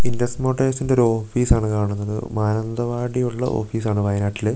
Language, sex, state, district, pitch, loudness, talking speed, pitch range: Malayalam, male, Kerala, Wayanad, 115 Hz, -21 LUFS, 145 wpm, 105-125 Hz